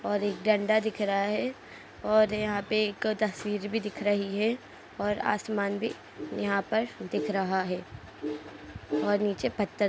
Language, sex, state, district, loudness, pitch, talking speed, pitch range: Hindi, female, Uttar Pradesh, Jalaun, -29 LUFS, 205 Hz, 160 wpm, 200-215 Hz